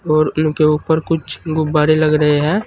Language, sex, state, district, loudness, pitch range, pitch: Hindi, male, Uttar Pradesh, Saharanpur, -15 LUFS, 150-160 Hz, 155 Hz